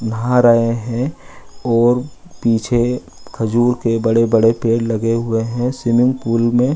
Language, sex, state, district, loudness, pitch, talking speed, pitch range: Hindi, male, Bihar, Gaya, -16 LUFS, 115 Hz, 140 wpm, 115-125 Hz